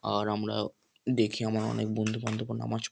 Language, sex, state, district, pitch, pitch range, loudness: Bengali, male, West Bengal, North 24 Parganas, 110 Hz, 105-115 Hz, -31 LUFS